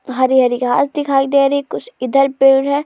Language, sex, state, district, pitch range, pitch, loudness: Hindi, female, Uttar Pradesh, Jalaun, 260-280 Hz, 270 Hz, -14 LUFS